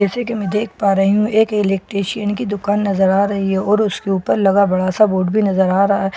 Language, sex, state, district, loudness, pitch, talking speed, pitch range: Hindi, female, Bihar, Katihar, -16 LUFS, 200 Hz, 300 wpm, 195-210 Hz